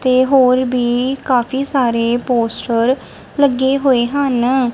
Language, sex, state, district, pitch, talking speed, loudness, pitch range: Punjabi, female, Punjab, Kapurthala, 255 Hz, 125 wpm, -15 LUFS, 240-265 Hz